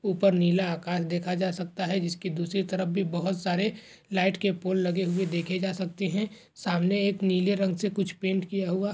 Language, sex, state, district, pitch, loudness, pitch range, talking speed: Hindi, male, Uttar Pradesh, Jalaun, 190 Hz, -28 LUFS, 180-195 Hz, 215 wpm